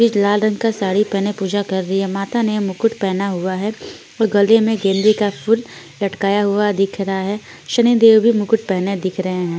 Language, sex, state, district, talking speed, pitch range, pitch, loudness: Hindi, female, Punjab, Fazilka, 220 wpm, 195-220 Hz, 205 Hz, -17 LUFS